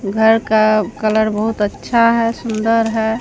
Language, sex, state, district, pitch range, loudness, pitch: Hindi, female, Bihar, Katihar, 215-230 Hz, -15 LUFS, 220 Hz